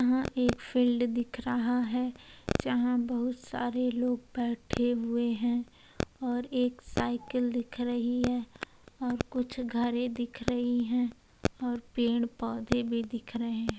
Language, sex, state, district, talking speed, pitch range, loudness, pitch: Hindi, female, Uttar Pradesh, Hamirpur, 135 wpm, 240-245 Hz, -31 LUFS, 245 Hz